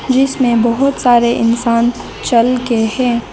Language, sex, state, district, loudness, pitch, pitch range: Hindi, female, Arunachal Pradesh, Lower Dibang Valley, -13 LUFS, 240 Hz, 235-250 Hz